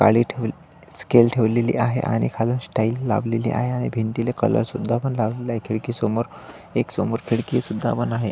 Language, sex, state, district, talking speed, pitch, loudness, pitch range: Marathi, male, Maharashtra, Solapur, 165 wpm, 115 Hz, -22 LUFS, 115-120 Hz